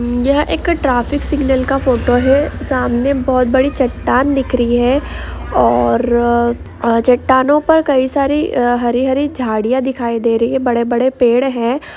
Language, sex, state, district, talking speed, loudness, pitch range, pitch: Hindi, female, Andhra Pradesh, Chittoor, 150 wpm, -14 LUFS, 240-275 Hz, 255 Hz